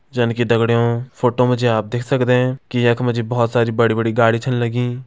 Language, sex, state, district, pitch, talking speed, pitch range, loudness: Hindi, male, Uttarakhand, Tehri Garhwal, 120 Hz, 225 wpm, 115-125 Hz, -17 LUFS